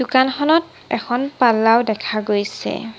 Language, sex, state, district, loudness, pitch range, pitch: Assamese, female, Assam, Sonitpur, -18 LUFS, 220-265 Hz, 240 Hz